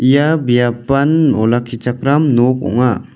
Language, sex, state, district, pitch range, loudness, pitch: Garo, male, Meghalaya, West Garo Hills, 120-140 Hz, -14 LUFS, 125 Hz